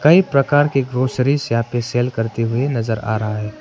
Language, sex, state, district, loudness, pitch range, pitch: Hindi, male, Arunachal Pradesh, Papum Pare, -18 LUFS, 115-140 Hz, 120 Hz